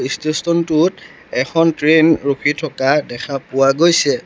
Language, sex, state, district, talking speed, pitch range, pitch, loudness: Assamese, male, Assam, Sonitpur, 125 wpm, 135-165 Hz, 155 Hz, -16 LUFS